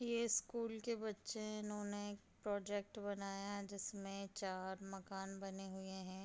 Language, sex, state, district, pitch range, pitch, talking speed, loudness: Hindi, female, Bihar, Darbhanga, 195-210 Hz, 200 Hz, 155 wpm, -46 LUFS